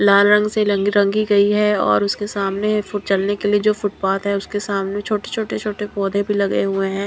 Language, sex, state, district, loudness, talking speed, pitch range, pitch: Hindi, female, Punjab, Kapurthala, -18 LUFS, 230 wpm, 195-210 Hz, 205 Hz